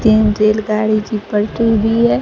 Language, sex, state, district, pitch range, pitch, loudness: Hindi, female, Bihar, Kaimur, 210-220 Hz, 215 Hz, -15 LUFS